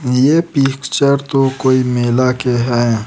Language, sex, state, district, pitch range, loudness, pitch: Hindi, male, Chhattisgarh, Raipur, 125-140 Hz, -14 LUFS, 130 Hz